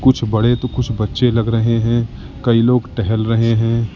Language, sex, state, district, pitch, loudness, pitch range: Hindi, male, Uttar Pradesh, Lalitpur, 115 Hz, -16 LUFS, 115-120 Hz